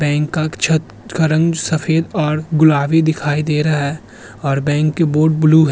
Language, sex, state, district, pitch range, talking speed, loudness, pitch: Hindi, male, Uttar Pradesh, Muzaffarnagar, 145-160 Hz, 190 wpm, -16 LUFS, 155 Hz